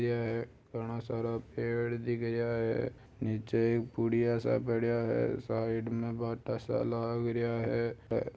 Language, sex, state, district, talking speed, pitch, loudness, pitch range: Marwari, male, Rajasthan, Churu, 145 wpm, 115 Hz, -33 LUFS, 115-120 Hz